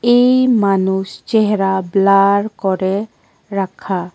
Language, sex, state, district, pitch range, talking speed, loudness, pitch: Bengali, female, Tripura, West Tripura, 190-215 Hz, 85 wpm, -15 LUFS, 195 Hz